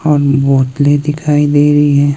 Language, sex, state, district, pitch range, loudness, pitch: Hindi, male, Himachal Pradesh, Shimla, 140-145 Hz, -11 LUFS, 145 Hz